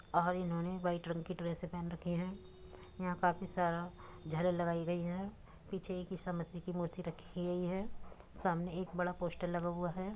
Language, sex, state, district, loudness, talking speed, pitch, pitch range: Hindi, male, Uttar Pradesh, Muzaffarnagar, -39 LUFS, 190 wpm, 175 Hz, 175-180 Hz